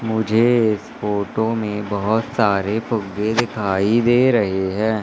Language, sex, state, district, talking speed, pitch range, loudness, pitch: Hindi, male, Madhya Pradesh, Katni, 130 wpm, 100-115 Hz, -19 LUFS, 110 Hz